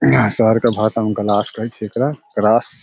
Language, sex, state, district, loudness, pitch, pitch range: Maithili, male, Bihar, Samastipur, -17 LUFS, 110 Hz, 105-120 Hz